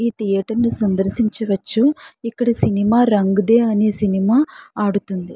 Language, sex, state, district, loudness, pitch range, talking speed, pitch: Telugu, female, Andhra Pradesh, Srikakulam, -17 LUFS, 200-235 Hz, 125 wpm, 215 Hz